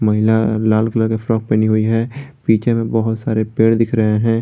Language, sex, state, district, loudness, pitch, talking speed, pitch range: Hindi, male, Jharkhand, Garhwa, -16 LUFS, 110 Hz, 215 wpm, 110-115 Hz